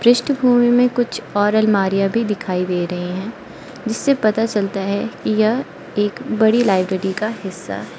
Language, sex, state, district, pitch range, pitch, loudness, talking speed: Hindi, female, Arunachal Pradesh, Lower Dibang Valley, 195-240 Hz, 215 Hz, -18 LUFS, 165 wpm